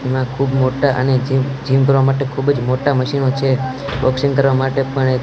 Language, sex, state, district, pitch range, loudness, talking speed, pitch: Gujarati, male, Gujarat, Gandhinagar, 130-135 Hz, -16 LUFS, 195 wpm, 135 Hz